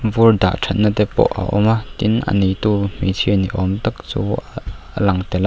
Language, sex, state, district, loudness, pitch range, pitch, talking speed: Mizo, male, Mizoram, Aizawl, -18 LUFS, 95-110 Hz, 100 Hz, 230 wpm